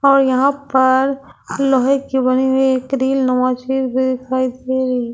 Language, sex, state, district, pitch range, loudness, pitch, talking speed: Hindi, female, Delhi, New Delhi, 255-270 Hz, -16 LUFS, 260 Hz, 105 wpm